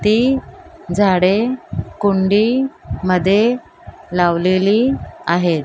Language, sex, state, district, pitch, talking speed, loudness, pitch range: Marathi, female, Maharashtra, Mumbai Suburban, 200 Hz, 65 wpm, -17 LUFS, 185-245 Hz